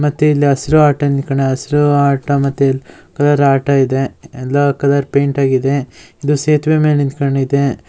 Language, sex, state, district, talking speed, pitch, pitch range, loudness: Kannada, male, Karnataka, Shimoga, 145 wpm, 140 Hz, 135-145 Hz, -14 LUFS